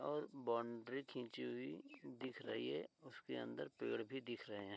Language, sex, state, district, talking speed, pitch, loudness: Hindi, male, Uttar Pradesh, Hamirpur, 175 wpm, 115 Hz, -48 LUFS